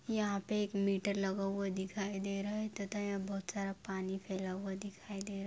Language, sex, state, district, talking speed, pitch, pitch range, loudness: Hindi, female, Jharkhand, Sahebganj, 210 wpm, 200 Hz, 195-200 Hz, -38 LUFS